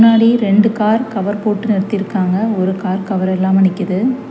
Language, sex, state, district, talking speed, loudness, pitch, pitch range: Tamil, female, Tamil Nadu, Chennai, 155 wpm, -15 LUFS, 205 Hz, 190-220 Hz